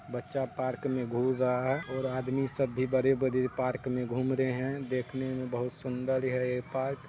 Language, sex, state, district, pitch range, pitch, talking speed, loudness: Hindi, male, Bihar, Saharsa, 125-130 Hz, 130 Hz, 205 wpm, -31 LUFS